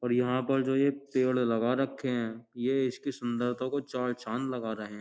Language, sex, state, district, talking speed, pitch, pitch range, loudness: Hindi, male, Uttar Pradesh, Jyotiba Phule Nagar, 215 wpm, 125 Hz, 120-135 Hz, -30 LUFS